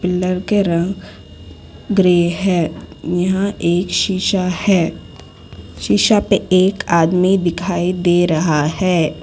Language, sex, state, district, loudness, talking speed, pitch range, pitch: Hindi, female, Gujarat, Valsad, -16 LUFS, 110 wpm, 160-190 Hz, 175 Hz